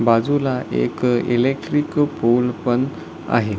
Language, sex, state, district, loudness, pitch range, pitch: Marathi, male, Maharashtra, Solapur, -19 LUFS, 120-145 Hz, 125 Hz